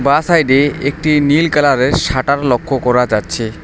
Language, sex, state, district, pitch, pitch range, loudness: Bengali, male, West Bengal, Alipurduar, 140 Hz, 125-150 Hz, -13 LUFS